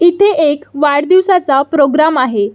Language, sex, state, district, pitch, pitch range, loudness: Marathi, female, Maharashtra, Solapur, 295 Hz, 280-345 Hz, -11 LUFS